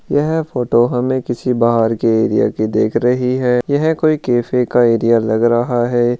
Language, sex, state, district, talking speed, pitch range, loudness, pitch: Hindi, male, Rajasthan, Churu, 185 wpm, 115-125 Hz, -15 LUFS, 120 Hz